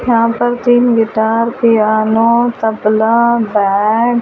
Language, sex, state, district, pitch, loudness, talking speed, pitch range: Hindi, female, Delhi, New Delhi, 230 Hz, -12 LUFS, 100 wpm, 220-235 Hz